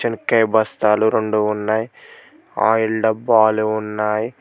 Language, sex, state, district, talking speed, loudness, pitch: Telugu, male, Telangana, Mahabubabad, 95 wpm, -18 LUFS, 110 Hz